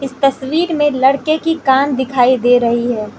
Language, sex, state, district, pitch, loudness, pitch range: Hindi, female, Manipur, Imphal West, 265 Hz, -14 LUFS, 245-290 Hz